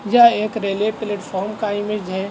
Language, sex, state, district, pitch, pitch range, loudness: Hindi, male, Maharashtra, Aurangabad, 210 Hz, 200-215 Hz, -19 LUFS